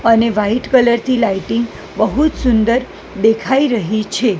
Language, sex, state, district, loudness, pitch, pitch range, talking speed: Gujarati, female, Gujarat, Gandhinagar, -15 LUFS, 230 Hz, 215-250 Hz, 135 wpm